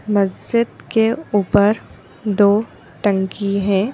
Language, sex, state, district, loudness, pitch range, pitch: Hindi, female, Madhya Pradesh, Bhopal, -18 LUFS, 200-225 Hz, 205 Hz